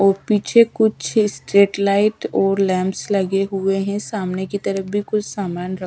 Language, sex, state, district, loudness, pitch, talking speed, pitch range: Hindi, female, Odisha, Sambalpur, -19 LUFS, 200 Hz, 165 wpm, 195-210 Hz